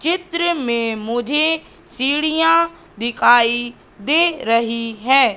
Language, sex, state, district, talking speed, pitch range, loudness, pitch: Hindi, female, Madhya Pradesh, Katni, 90 wpm, 235-325 Hz, -17 LUFS, 270 Hz